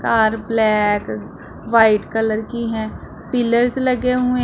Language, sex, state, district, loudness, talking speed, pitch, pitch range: Hindi, female, Punjab, Pathankot, -18 LUFS, 120 wpm, 225 Hz, 220-245 Hz